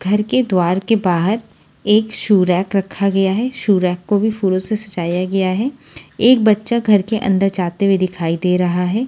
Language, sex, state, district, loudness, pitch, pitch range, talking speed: Hindi, female, Haryana, Charkhi Dadri, -16 LUFS, 195 Hz, 185-215 Hz, 205 wpm